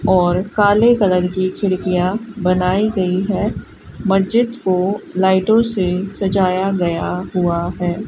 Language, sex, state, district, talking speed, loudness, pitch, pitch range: Hindi, female, Rajasthan, Bikaner, 120 wpm, -17 LUFS, 190 Hz, 180-205 Hz